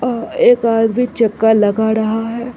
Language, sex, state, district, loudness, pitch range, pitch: Hindi, female, Bihar, Samastipur, -14 LUFS, 220-240 Hz, 225 Hz